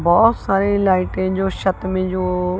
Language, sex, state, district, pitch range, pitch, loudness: Hindi, female, Punjab, Kapurthala, 185-195 Hz, 185 Hz, -18 LUFS